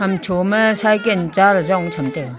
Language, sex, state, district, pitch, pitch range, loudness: Wancho, female, Arunachal Pradesh, Longding, 190 Hz, 170-210 Hz, -16 LUFS